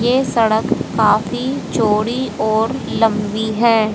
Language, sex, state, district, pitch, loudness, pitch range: Hindi, female, Haryana, Rohtak, 225 Hz, -17 LUFS, 215-235 Hz